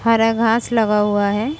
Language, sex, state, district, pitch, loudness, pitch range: Hindi, female, Uttar Pradesh, Jalaun, 225 Hz, -17 LUFS, 210-230 Hz